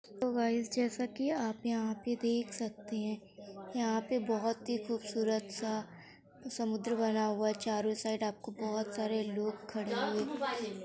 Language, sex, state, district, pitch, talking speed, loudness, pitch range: Hindi, female, Uttar Pradesh, Muzaffarnagar, 220 Hz, 160 wpm, -35 LUFS, 215-235 Hz